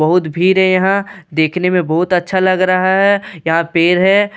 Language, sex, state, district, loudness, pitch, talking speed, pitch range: Hindi, male, Bihar, Katihar, -13 LUFS, 185 Hz, 205 wpm, 170-190 Hz